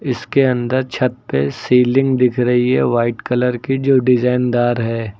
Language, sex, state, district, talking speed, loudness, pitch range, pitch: Hindi, male, Uttar Pradesh, Lucknow, 175 wpm, -16 LUFS, 120-130 Hz, 125 Hz